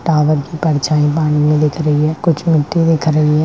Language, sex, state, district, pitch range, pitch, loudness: Hindi, female, Bihar, Madhepura, 150-160 Hz, 155 Hz, -14 LUFS